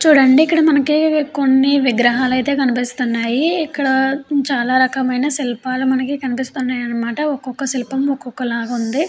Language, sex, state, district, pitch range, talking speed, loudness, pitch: Telugu, female, Andhra Pradesh, Chittoor, 250-285 Hz, 120 wpm, -17 LUFS, 265 Hz